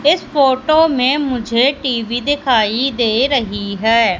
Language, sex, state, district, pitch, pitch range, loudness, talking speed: Hindi, female, Madhya Pradesh, Katni, 255 Hz, 230-280 Hz, -15 LUFS, 130 wpm